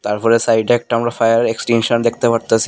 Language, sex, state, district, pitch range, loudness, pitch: Bengali, male, Tripura, Unakoti, 115-120 Hz, -15 LUFS, 115 Hz